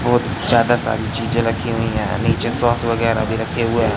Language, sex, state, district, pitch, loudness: Hindi, male, Madhya Pradesh, Katni, 115 Hz, -18 LUFS